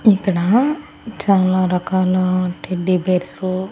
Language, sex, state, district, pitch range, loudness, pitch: Telugu, female, Andhra Pradesh, Annamaya, 185-200 Hz, -18 LUFS, 185 Hz